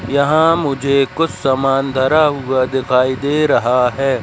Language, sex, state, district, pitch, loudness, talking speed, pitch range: Hindi, male, Madhya Pradesh, Katni, 135 Hz, -15 LUFS, 140 wpm, 130-145 Hz